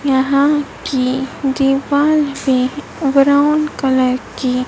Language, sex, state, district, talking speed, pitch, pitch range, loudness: Hindi, female, Madhya Pradesh, Dhar, 90 wpm, 275 Hz, 260-285 Hz, -15 LUFS